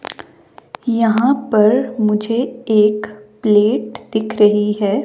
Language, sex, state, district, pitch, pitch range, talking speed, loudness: Hindi, female, Himachal Pradesh, Shimla, 215 Hz, 210-235 Hz, 95 wpm, -16 LUFS